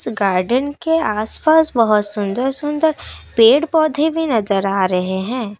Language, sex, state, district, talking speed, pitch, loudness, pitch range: Hindi, female, Assam, Kamrup Metropolitan, 140 wpm, 235 Hz, -16 LUFS, 205-310 Hz